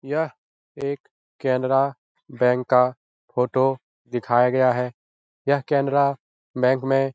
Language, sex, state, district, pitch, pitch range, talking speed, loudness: Hindi, male, Bihar, Jahanabad, 130 Hz, 125-140 Hz, 120 wpm, -22 LUFS